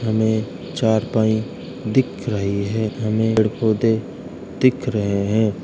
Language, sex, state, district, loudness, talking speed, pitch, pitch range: Hindi, male, Uttar Pradesh, Jalaun, -20 LUFS, 115 wpm, 110 Hz, 105-110 Hz